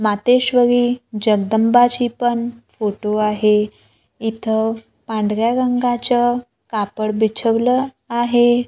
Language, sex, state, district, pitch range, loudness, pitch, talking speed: Marathi, female, Maharashtra, Gondia, 215-245 Hz, -18 LUFS, 235 Hz, 75 wpm